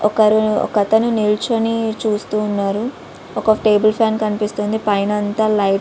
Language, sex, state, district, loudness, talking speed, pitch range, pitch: Telugu, female, Andhra Pradesh, Visakhapatnam, -17 LUFS, 135 wpm, 210-220 Hz, 215 Hz